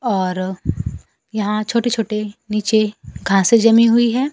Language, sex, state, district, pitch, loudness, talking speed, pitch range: Hindi, female, Bihar, Kaimur, 215 Hz, -17 LUFS, 125 wpm, 210-230 Hz